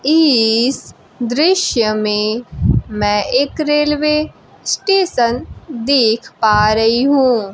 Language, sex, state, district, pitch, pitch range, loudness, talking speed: Hindi, female, Bihar, Kaimur, 245 Hz, 220-295 Hz, -15 LUFS, 90 wpm